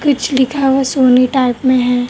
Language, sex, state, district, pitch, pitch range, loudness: Hindi, female, Maharashtra, Mumbai Suburban, 260 Hz, 250-270 Hz, -13 LUFS